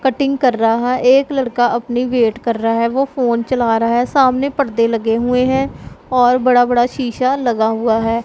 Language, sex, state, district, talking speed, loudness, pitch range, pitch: Hindi, female, Punjab, Pathankot, 195 wpm, -15 LUFS, 230-260 Hz, 245 Hz